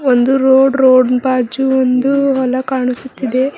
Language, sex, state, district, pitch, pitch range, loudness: Kannada, female, Karnataka, Bidar, 260 Hz, 255-265 Hz, -13 LUFS